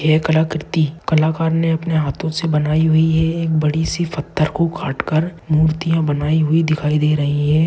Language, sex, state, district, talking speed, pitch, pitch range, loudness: Hindi, male, Maharashtra, Dhule, 180 wpm, 155 Hz, 155-160 Hz, -17 LUFS